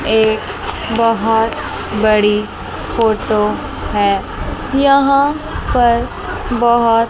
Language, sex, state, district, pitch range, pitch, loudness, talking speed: Hindi, female, Chandigarh, Chandigarh, 215-240 Hz, 225 Hz, -15 LUFS, 75 wpm